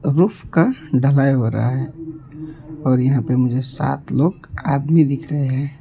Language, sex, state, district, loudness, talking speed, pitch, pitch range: Hindi, male, West Bengal, Alipurduar, -18 LUFS, 165 wpm, 140 Hz, 130-155 Hz